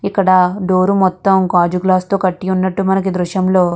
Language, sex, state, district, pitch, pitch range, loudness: Telugu, female, Andhra Pradesh, Guntur, 185 Hz, 185-190 Hz, -14 LUFS